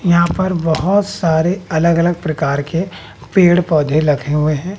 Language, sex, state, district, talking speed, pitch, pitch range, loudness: Hindi, male, Bihar, West Champaran, 140 wpm, 170 Hz, 155-180 Hz, -15 LUFS